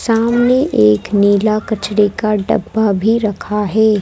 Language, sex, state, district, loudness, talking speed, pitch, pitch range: Hindi, female, Madhya Pradesh, Bhopal, -14 LUFS, 135 wpm, 215 Hz, 205-220 Hz